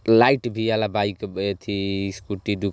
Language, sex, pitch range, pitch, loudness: Bhojpuri, male, 100-110 Hz, 100 Hz, -23 LUFS